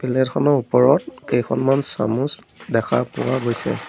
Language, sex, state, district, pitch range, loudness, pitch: Assamese, male, Assam, Sonitpur, 120-135 Hz, -20 LUFS, 130 Hz